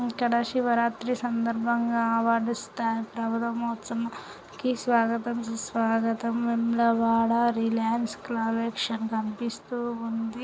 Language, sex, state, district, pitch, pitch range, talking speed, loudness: Telugu, female, Telangana, Karimnagar, 230 Hz, 230-235 Hz, 80 wpm, -27 LUFS